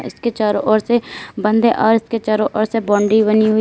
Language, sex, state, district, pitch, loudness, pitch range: Hindi, female, Uttar Pradesh, Lalitpur, 215 Hz, -16 LUFS, 215-225 Hz